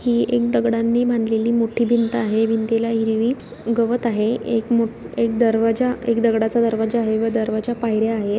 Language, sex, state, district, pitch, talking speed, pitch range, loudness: Marathi, female, Maharashtra, Sindhudurg, 230 Hz, 170 wpm, 220-235 Hz, -20 LUFS